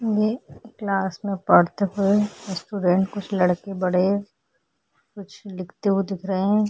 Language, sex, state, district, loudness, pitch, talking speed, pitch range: Hindi, female, Goa, North and South Goa, -23 LUFS, 200 Hz, 135 wpm, 190-205 Hz